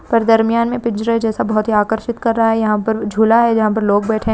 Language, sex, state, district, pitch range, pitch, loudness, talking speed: Hindi, female, Maharashtra, Solapur, 215-230 Hz, 225 Hz, -15 LUFS, 260 wpm